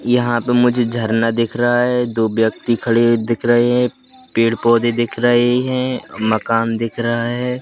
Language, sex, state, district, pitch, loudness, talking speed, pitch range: Hindi, male, Madhya Pradesh, Katni, 120 Hz, -17 LUFS, 175 wpm, 115-120 Hz